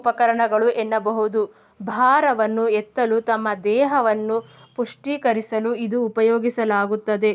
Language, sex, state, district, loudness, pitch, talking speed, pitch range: Kannada, female, Karnataka, Belgaum, -20 LUFS, 225 Hz, 75 wpm, 215-240 Hz